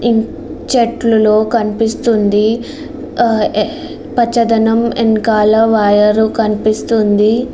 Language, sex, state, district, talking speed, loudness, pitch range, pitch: Telugu, female, Andhra Pradesh, Srikakulam, 55 wpm, -13 LUFS, 215-235 Hz, 225 Hz